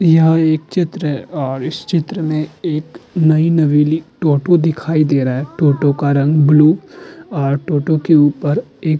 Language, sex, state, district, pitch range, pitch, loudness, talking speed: Hindi, male, Uttar Pradesh, Muzaffarnagar, 145-165 Hz, 155 Hz, -15 LUFS, 160 wpm